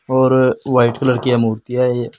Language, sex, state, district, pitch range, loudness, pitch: Hindi, male, Uttar Pradesh, Shamli, 120-130 Hz, -16 LUFS, 125 Hz